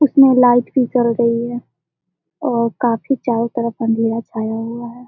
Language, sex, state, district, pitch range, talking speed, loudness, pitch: Hindi, female, Bihar, Gopalganj, 230-245 Hz, 175 wpm, -17 LUFS, 235 Hz